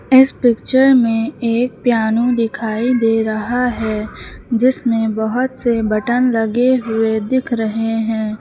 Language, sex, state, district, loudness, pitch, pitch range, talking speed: Hindi, female, Uttar Pradesh, Lucknow, -16 LUFS, 230 Hz, 220-250 Hz, 130 wpm